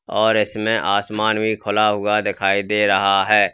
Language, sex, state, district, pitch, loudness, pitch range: Hindi, male, Uttar Pradesh, Lalitpur, 105 Hz, -18 LUFS, 100-110 Hz